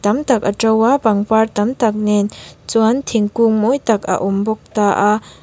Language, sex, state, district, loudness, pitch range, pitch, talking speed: Mizo, female, Mizoram, Aizawl, -16 LUFS, 205-230 Hz, 220 Hz, 190 wpm